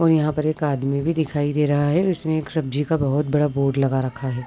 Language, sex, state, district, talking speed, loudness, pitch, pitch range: Hindi, female, Uttar Pradesh, Varanasi, 270 wpm, -21 LUFS, 150 Hz, 140-155 Hz